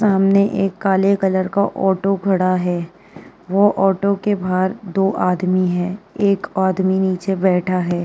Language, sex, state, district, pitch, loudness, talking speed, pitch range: Hindi, female, Uttar Pradesh, Jyotiba Phule Nagar, 190 Hz, -18 LUFS, 150 wpm, 185-195 Hz